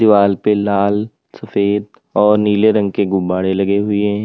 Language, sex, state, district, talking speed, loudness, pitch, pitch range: Hindi, male, Uttar Pradesh, Lalitpur, 170 wpm, -15 LUFS, 100 Hz, 100-105 Hz